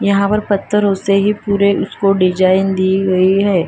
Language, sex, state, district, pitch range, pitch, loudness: Hindi, female, Maharashtra, Gondia, 190-200 Hz, 195 Hz, -14 LUFS